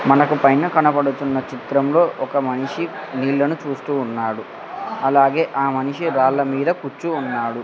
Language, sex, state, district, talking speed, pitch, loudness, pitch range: Telugu, male, Andhra Pradesh, Sri Satya Sai, 125 wpm, 140 Hz, -19 LUFS, 130-145 Hz